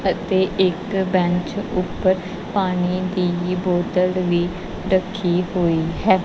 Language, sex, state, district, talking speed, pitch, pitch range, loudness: Punjabi, female, Punjab, Kapurthala, 105 wpm, 185 Hz, 180-190 Hz, -21 LUFS